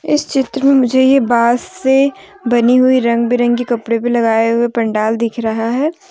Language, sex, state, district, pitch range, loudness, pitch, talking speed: Hindi, female, Jharkhand, Deoghar, 235-270 Hz, -14 LUFS, 245 Hz, 185 wpm